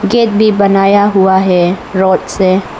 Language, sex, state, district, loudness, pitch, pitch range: Hindi, female, Arunachal Pradesh, Lower Dibang Valley, -10 LUFS, 195 Hz, 185-205 Hz